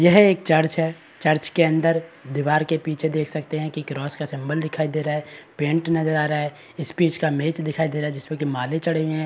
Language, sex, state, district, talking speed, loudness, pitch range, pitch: Hindi, male, Bihar, Araria, 225 wpm, -23 LUFS, 150-160 Hz, 155 Hz